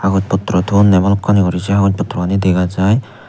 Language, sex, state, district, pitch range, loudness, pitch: Chakma, male, Tripura, Unakoti, 90-100 Hz, -14 LUFS, 95 Hz